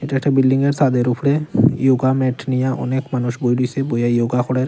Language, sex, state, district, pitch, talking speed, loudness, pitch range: Bengali, male, Tripura, Unakoti, 130 Hz, 205 wpm, -18 LUFS, 125-135 Hz